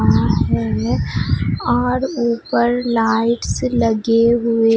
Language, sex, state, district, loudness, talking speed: Hindi, female, Bihar, Katihar, -17 LUFS, 75 wpm